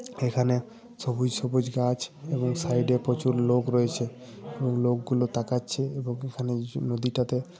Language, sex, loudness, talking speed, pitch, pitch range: Bengali, male, -28 LUFS, 120 wpm, 125 Hz, 125-130 Hz